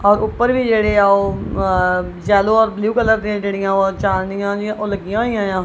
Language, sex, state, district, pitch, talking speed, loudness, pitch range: Punjabi, female, Punjab, Kapurthala, 205 Hz, 190 wpm, -17 LUFS, 195-220 Hz